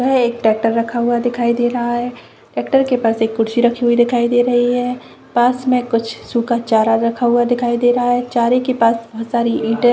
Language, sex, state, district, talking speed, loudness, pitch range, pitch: Hindi, female, Chhattisgarh, Balrampur, 225 wpm, -16 LUFS, 230-245 Hz, 240 Hz